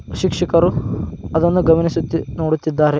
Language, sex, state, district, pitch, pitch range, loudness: Kannada, male, Karnataka, Dharwad, 160 Hz, 155-165 Hz, -18 LUFS